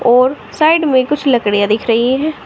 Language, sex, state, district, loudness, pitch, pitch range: Hindi, female, Uttar Pradesh, Shamli, -13 LUFS, 255 Hz, 230-295 Hz